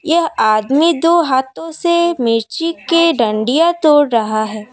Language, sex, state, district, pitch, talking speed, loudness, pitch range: Hindi, female, Assam, Kamrup Metropolitan, 305 Hz, 140 wpm, -14 LUFS, 230-335 Hz